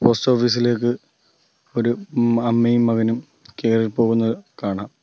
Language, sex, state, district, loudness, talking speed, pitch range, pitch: Malayalam, male, Kerala, Kollam, -20 LUFS, 120 wpm, 115-120 Hz, 120 Hz